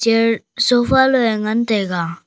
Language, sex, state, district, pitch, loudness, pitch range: Wancho, male, Arunachal Pradesh, Longding, 230 Hz, -16 LUFS, 215-240 Hz